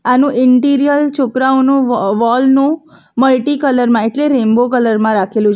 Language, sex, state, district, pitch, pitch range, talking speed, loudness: Gujarati, female, Gujarat, Valsad, 255 Hz, 235-275 Hz, 160 wpm, -12 LUFS